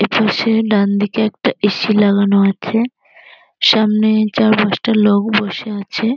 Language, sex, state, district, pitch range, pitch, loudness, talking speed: Bengali, female, West Bengal, North 24 Parganas, 200-220 Hz, 215 Hz, -15 LUFS, 105 wpm